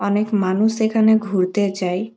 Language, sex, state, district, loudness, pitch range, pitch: Bengali, female, West Bengal, Malda, -18 LUFS, 190-220 Hz, 205 Hz